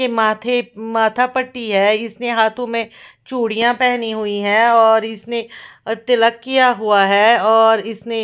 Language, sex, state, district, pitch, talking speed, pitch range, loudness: Hindi, female, Punjab, Fazilka, 225 Hz, 155 wpm, 220-240 Hz, -16 LUFS